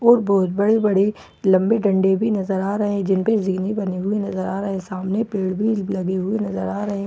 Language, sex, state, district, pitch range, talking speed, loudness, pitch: Hindi, female, Bihar, Katihar, 190-210 Hz, 235 wpm, -20 LUFS, 200 Hz